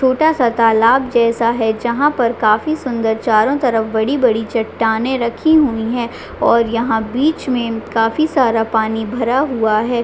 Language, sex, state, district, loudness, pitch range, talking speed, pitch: Hindi, female, Chhattisgarh, Raigarh, -15 LUFS, 225-255 Hz, 160 wpm, 235 Hz